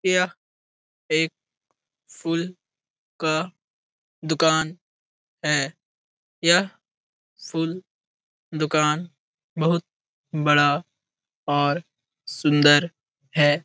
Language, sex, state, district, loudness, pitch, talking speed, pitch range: Hindi, male, Bihar, Jahanabad, -23 LUFS, 160 Hz, 60 wpm, 150-170 Hz